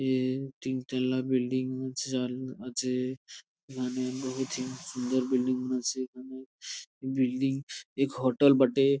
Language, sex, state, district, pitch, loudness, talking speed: Bengali, male, West Bengal, Purulia, 130 Hz, -30 LUFS, 105 wpm